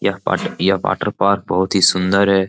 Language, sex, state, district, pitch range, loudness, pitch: Hindi, male, Bihar, Jamui, 95-100 Hz, -17 LUFS, 95 Hz